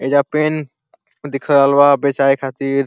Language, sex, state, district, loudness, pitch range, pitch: Bhojpuri, male, Uttar Pradesh, Deoria, -15 LUFS, 135-145 Hz, 140 Hz